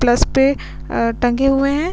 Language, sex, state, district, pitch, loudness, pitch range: Hindi, female, Bihar, Vaishali, 270 Hz, -17 LUFS, 245-275 Hz